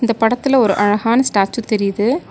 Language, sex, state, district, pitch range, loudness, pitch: Tamil, female, Tamil Nadu, Nilgiris, 205-245 Hz, -15 LUFS, 225 Hz